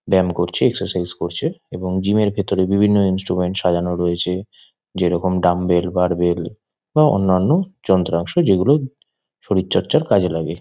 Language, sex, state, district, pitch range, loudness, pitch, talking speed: Bengali, male, West Bengal, Kolkata, 90-100 Hz, -18 LUFS, 95 Hz, 135 wpm